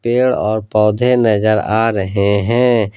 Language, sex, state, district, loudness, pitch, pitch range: Hindi, male, Jharkhand, Ranchi, -14 LUFS, 110 Hz, 105-120 Hz